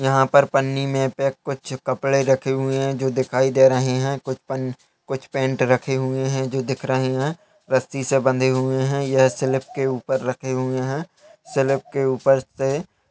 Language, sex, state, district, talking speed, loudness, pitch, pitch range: Hindi, male, Uttar Pradesh, Hamirpur, 195 wpm, -21 LUFS, 135 Hz, 130-135 Hz